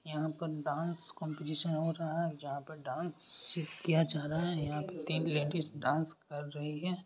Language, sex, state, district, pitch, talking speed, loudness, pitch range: Hindi, male, Bihar, Bhagalpur, 160 Hz, 185 wpm, -36 LUFS, 150-165 Hz